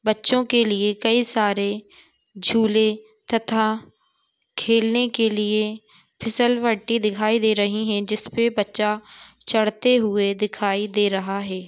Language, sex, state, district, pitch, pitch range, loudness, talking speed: Hindi, female, Jharkhand, Sahebganj, 215 Hz, 210-230 Hz, -21 LUFS, 120 wpm